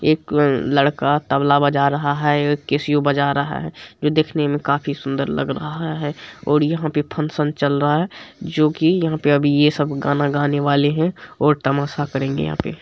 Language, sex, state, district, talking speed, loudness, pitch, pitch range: Hindi, male, Bihar, Supaul, 195 wpm, -19 LUFS, 145 Hz, 145-150 Hz